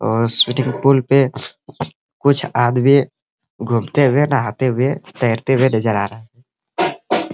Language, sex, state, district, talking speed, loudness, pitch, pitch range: Hindi, male, Uttar Pradesh, Ghazipur, 130 wpm, -16 LUFS, 130 Hz, 115-140 Hz